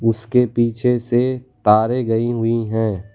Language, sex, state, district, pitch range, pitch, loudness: Hindi, male, Gujarat, Valsad, 110-125 Hz, 115 Hz, -18 LUFS